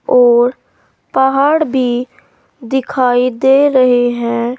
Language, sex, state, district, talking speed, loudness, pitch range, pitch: Hindi, female, Uttar Pradesh, Saharanpur, 90 wpm, -13 LUFS, 245-265 Hz, 250 Hz